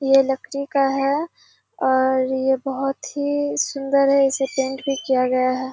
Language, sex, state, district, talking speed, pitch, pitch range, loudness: Hindi, female, Bihar, Kishanganj, 165 wpm, 270 Hz, 260-275 Hz, -21 LUFS